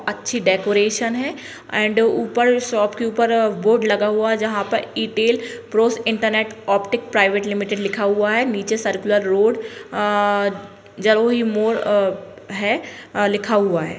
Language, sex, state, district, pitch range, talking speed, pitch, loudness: Hindi, female, Bihar, Madhepura, 205-225 Hz, 140 wpm, 215 Hz, -19 LUFS